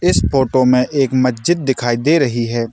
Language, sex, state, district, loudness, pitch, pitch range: Hindi, male, Maharashtra, Sindhudurg, -15 LUFS, 130 Hz, 120-135 Hz